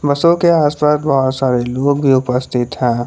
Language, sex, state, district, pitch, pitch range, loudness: Hindi, male, Jharkhand, Palamu, 135 Hz, 125-150 Hz, -14 LUFS